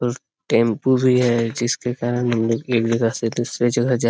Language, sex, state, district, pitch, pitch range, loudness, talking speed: Hindi, male, Bihar, Jamui, 120 Hz, 115-120 Hz, -20 LUFS, 205 wpm